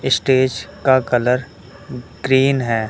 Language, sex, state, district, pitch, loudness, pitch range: Hindi, male, Uttar Pradesh, Lucknow, 125 Hz, -17 LUFS, 115-130 Hz